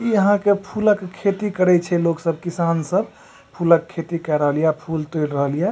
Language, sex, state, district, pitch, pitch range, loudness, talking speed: Maithili, male, Bihar, Supaul, 170 Hz, 160-200 Hz, -20 LUFS, 220 wpm